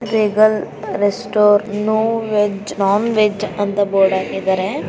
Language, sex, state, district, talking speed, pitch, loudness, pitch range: Kannada, female, Karnataka, Raichur, 125 wpm, 205 Hz, -16 LUFS, 200-215 Hz